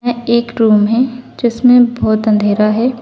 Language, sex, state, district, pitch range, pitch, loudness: Hindi, female, Uttar Pradesh, Saharanpur, 215-245 Hz, 235 Hz, -12 LUFS